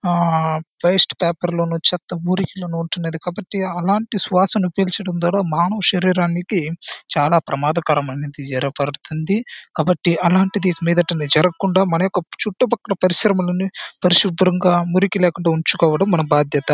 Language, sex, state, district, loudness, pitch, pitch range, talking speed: Telugu, male, Andhra Pradesh, Chittoor, -18 LUFS, 175 Hz, 165-190 Hz, 120 wpm